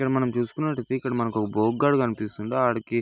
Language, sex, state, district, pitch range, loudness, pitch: Telugu, male, Andhra Pradesh, Guntur, 115-130 Hz, -25 LUFS, 120 Hz